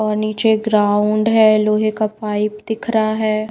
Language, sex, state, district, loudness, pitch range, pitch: Hindi, female, Haryana, Rohtak, -16 LUFS, 215-220 Hz, 215 Hz